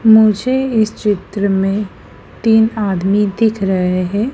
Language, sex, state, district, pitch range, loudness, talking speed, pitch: Hindi, female, Madhya Pradesh, Dhar, 195-220 Hz, -15 LUFS, 125 wpm, 210 Hz